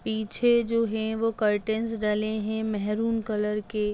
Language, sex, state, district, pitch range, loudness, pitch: Hindi, female, Bihar, Darbhanga, 210-225 Hz, -27 LUFS, 220 Hz